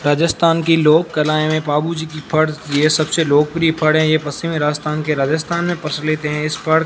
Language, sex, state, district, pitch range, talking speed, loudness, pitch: Hindi, male, Rajasthan, Barmer, 150-160 Hz, 200 wpm, -17 LUFS, 155 Hz